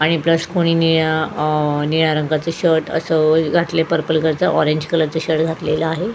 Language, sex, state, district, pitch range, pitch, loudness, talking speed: Marathi, female, Goa, North and South Goa, 155-165 Hz, 160 Hz, -17 LUFS, 165 wpm